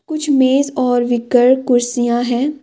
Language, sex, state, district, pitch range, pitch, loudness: Hindi, female, Assam, Kamrup Metropolitan, 245-280 Hz, 255 Hz, -15 LUFS